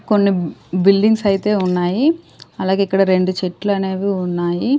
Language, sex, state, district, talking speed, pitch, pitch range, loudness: Telugu, female, Andhra Pradesh, Sri Satya Sai, 125 wpm, 195 Hz, 185-205 Hz, -17 LUFS